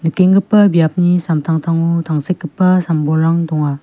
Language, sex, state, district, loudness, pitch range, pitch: Garo, female, Meghalaya, West Garo Hills, -14 LUFS, 160-180 Hz, 165 Hz